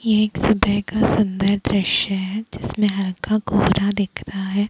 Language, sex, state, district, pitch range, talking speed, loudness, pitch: Hindi, female, Chhattisgarh, Bilaspur, 195-215 Hz, 165 wpm, -20 LUFS, 200 Hz